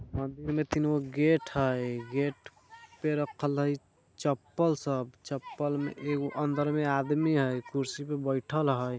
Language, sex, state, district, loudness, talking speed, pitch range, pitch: Bajjika, male, Bihar, Vaishali, -31 LUFS, 140 wpm, 135-150 Hz, 145 Hz